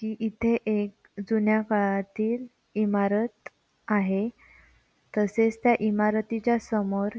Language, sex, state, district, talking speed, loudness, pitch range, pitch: Marathi, female, Maharashtra, Pune, 100 wpm, -26 LUFS, 205-225 Hz, 215 Hz